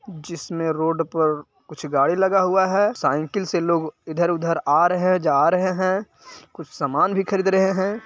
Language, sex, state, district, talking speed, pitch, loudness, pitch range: Hindi, male, Bihar, Jahanabad, 195 wpm, 175 Hz, -21 LUFS, 165-190 Hz